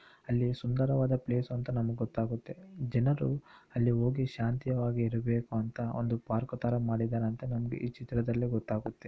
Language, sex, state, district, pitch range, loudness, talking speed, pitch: Kannada, male, Karnataka, Bellary, 115-125 Hz, -33 LUFS, 140 wpm, 120 Hz